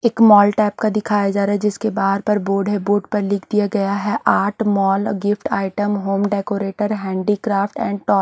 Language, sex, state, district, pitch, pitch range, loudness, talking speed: Hindi, female, Haryana, Charkhi Dadri, 205 Hz, 200-210 Hz, -18 LUFS, 210 wpm